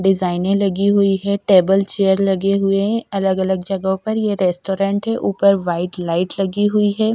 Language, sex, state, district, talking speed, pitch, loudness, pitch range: Hindi, female, Punjab, Kapurthala, 175 wpm, 195 Hz, -17 LUFS, 190-200 Hz